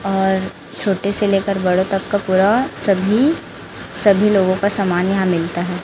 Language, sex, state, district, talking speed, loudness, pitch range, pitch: Hindi, female, Chhattisgarh, Raipur, 165 wpm, -17 LUFS, 190-205 Hz, 195 Hz